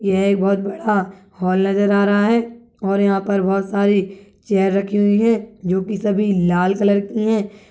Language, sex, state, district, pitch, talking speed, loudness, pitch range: Hindi, female, Chhattisgarh, Jashpur, 200 Hz, 185 wpm, -18 LUFS, 195-205 Hz